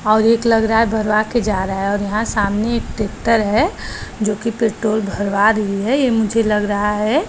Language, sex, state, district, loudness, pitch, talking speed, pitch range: Hindi, female, Maharashtra, Chandrapur, -17 LUFS, 215 Hz, 220 wpm, 210-225 Hz